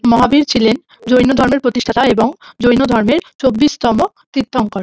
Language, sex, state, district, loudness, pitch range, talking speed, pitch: Bengali, female, West Bengal, North 24 Parganas, -13 LUFS, 235-270 Hz, 150 wpm, 250 Hz